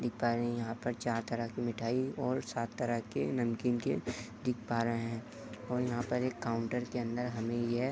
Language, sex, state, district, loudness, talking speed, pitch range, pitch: Hindi, male, Uttar Pradesh, Gorakhpur, -35 LUFS, 195 wpm, 115-125 Hz, 120 Hz